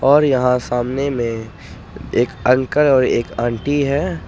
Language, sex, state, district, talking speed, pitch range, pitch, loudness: Hindi, male, Jharkhand, Ranchi, 140 wpm, 120-140 Hz, 130 Hz, -17 LUFS